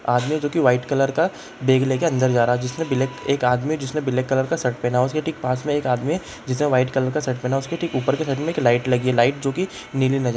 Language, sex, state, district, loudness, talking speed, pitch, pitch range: Hindi, male, Bihar, Darbhanga, -21 LUFS, 310 wpm, 130 Hz, 125-150 Hz